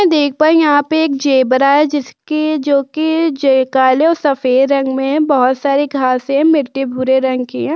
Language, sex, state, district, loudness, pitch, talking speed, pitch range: Hindi, female, Uttar Pradesh, Budaun, -13 LUFS, 280 Hz, 180 wpm, 265-305 Hz